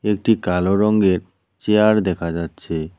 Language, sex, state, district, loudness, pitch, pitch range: Bengali, male, West Bengal, Cooch Behar, -18 LUFS, 95 Hz, 90-105 Hz